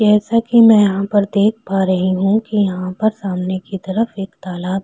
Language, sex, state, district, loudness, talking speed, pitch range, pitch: Hindi, female, Chhattisgarh, Korba, -16 LUFS, 210 wpm, 185-215 Hz, 200 Hz